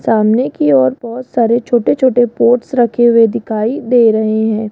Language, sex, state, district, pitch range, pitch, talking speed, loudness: Hindi, female, Rajasthan, Jaipur, 220-245 Hz, 235 Hz, 180 wpm, -12 LUFS